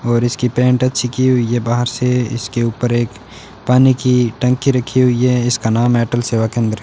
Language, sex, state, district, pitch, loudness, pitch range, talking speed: Hindi, male, Rajasthan, Bikaner, 120 Hz, -15 LUFS, 120-125 Hz, 210 wpm